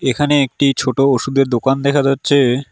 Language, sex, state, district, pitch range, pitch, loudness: Bengali, male, West Bengal, Alipurduar, 130-140 Hz, 135 Hz, -15 LUFS